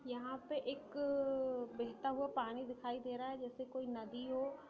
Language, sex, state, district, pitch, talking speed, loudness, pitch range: Hindi, female, Bihar, Sitamarhi, 260 Hz, 190 wpm, -42 LUFS, 245-270 Hz